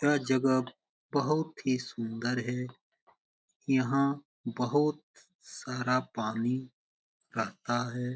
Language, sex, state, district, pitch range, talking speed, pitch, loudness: Hindi, male, Bihar, Jamui, 125-140 Hz, 95 wpm, 130 Hz, -31 LUFS